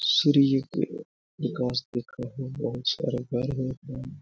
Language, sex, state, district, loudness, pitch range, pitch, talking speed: Hindi, male, Jharkhand, Sahebganj, -28 LUFS, 125-140 Hz, 130 Hz, 85 wpm